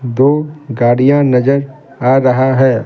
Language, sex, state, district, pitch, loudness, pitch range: Hindi, male, Bihar, Patna, 130 Hz, -12 LUFS, 125-140 Hz